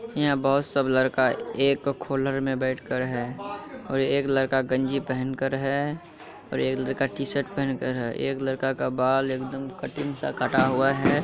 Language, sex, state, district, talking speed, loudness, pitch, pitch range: Hindi, male, Bihar, Kishanganj, 165 wpm, -26 LUFS, 135 Hz, 130-140 Hz